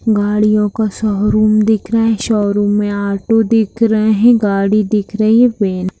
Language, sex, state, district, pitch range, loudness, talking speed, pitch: Hindi, female, Bihar, Lakhisarai, 205-220 Hz, -13 LUFS, 180 wpm, 215 Hz